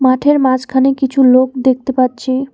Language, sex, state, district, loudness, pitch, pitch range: Bengali, female, West Bengal, Alipurduar, -13 LUFS, 260 Hz, 255-265 Hz